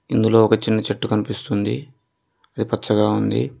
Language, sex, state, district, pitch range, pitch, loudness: Telugu, male, Telangana, Mahabubabad, 105-115 Hz, 110 Hz, -20 LUFS